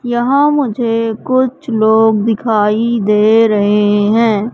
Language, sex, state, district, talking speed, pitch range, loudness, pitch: Hindi, female, Madhya Pradesh, Katni, 105 wpm, 215-240 Hz, -12 LUFS, 225 Hz